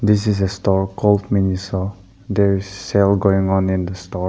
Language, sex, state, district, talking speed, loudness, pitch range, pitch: English, male, Nagaland, Dimapur, 195 wpm, -18 LUFS, 95-100 Hz, 95 Hz